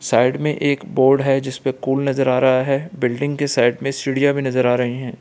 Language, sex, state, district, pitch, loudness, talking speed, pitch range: Hindi, male, Bihar, Gaya, 135 Hz, -18 LUFS, 240 wpm, 125-140 Hz